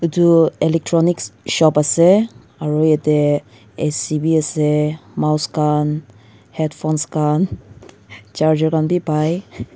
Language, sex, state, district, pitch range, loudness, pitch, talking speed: Nagamese, female, Nagaland, Dimapur, 150-160 Hz, -17 LUFS, 155 Hz, 105 wpm